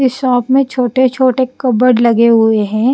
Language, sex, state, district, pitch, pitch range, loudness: Hindi, female, Bihar, West Champaran, 250 Hz, 235-260 Hz, -12 LUFS